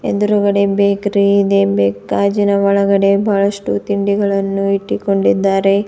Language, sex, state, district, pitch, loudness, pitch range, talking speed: Kannada, female, Karnataka, Bidar, 200 Hz, -14 LUFS, 195-200 Hz, 100 wpm